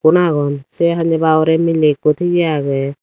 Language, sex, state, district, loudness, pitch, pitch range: Chakma, female, Tripura, Dhalai, -15 LUFS, 160 Hz, 145-165 Hz